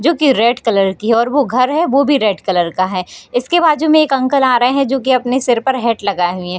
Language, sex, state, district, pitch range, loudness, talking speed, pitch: Hindi, female, Bihar, Bhagalpur, 210-275 Hz, -14 LUFS, 300 wpm, 250 Hz